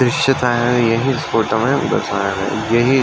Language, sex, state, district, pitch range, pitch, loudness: Hindi, male, Uttar Pradesh, Varanasi, 110-135 Hz, 120 Hz, -17 LUFS